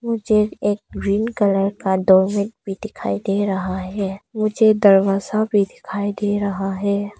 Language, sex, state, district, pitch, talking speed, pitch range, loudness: Hindi, female, Arunachal Pradesh, Papum Pare, 200 Hz, 160 wpm, 195-210 Hz, -19 LUFS